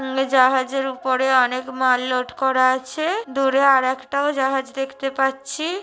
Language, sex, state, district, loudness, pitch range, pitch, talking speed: Bengali, female, West Bengal, North 24 Parganas, -20 LUFS, 255-270 Hz, 265 Hz, 165 wpm